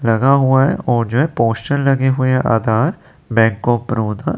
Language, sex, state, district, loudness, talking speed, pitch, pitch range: Hindi, male, Chandigarh, Chandigarh, -16 LUFS, 180 wpm, 125 Hz, 115-135 Hz